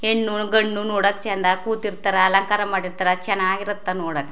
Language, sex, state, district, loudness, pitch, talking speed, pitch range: Kannada, female, Karnataka, Chamarajanagar, -21 LUFS, 200 Hz, 140 wpm, 185-210 Hz